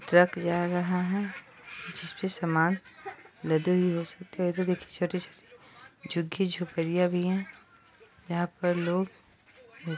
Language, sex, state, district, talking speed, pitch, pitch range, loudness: Hindi, female, Bihar, Saharsa, 125 wpm, 180 Hz, 175-185 Hz, -29 LUFS